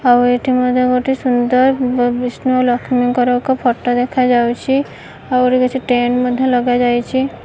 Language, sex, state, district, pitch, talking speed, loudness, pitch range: Odia, female, Odisha, Malkangiri, 250 Hz, 130 wpm, -15 LUFS, 245-255 Hz